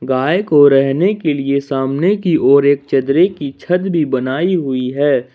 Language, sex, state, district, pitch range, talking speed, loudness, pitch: Hindi, male, Jharkhand, Ranchi, 135-175 Hz, 180 wpm, -14 LUFS, 140 Hz